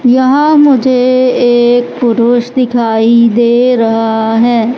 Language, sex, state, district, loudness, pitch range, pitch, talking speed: Hindi, female, Madhya Pradesh, Katni, -9 LUFS, 230-255 Hz, 240 Hz, 100 wpm